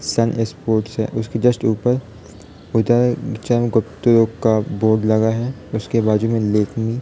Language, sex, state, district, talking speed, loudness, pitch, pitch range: Hindi, male, Uttar Pradesh, Varanasi, 155 wpm, -18 LUFS, 115 Hz, 110-120 Hz